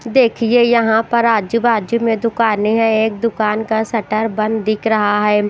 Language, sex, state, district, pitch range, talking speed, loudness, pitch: Hindi, female, Himachal Pradesh, Shimla, 215-230 Hz, 165 wpm, -15 LUFS, 225 Hz